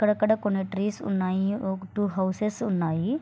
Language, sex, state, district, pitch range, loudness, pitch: Telugu, female, Andhra Pradesh, Srikakulam, 190-210 Hz, -27 LUFS, 200 Hz